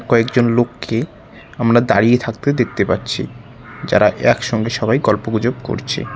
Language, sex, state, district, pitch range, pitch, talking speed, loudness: Bengali, male, West Bengal, Cooch Behar, 115-125 Hz, 120 Hz, 125 wpm, -16 LUFS